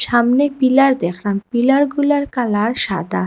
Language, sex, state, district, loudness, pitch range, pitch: Bengali, female, Assam, Hailakandi, -16 LUFS, 205-275 Hz, 245 Hz